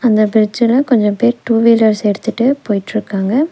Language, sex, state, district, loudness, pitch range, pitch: Tamil, female, Tamil Nadu, Nilgiris, -13 LUFS, 210-235 Hz, 225 Hz